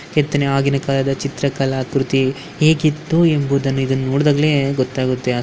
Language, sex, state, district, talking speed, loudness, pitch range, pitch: Kannada, female, Karnataka, Dharwad, 110 wpm, -17 LUFS, 135-145 Hz, 140 Hz